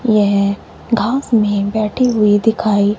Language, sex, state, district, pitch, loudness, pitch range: Hindi, male, Himachal Pradesh, Shimla, 215 Hz, -15 LUFS, 205-230 Hz